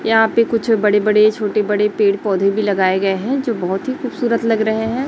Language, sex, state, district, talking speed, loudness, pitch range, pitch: Hindi, female, Chhattisgarh, Raipur, 235 wpm, -16 LUFS, 205-230 Hz, 215 Hz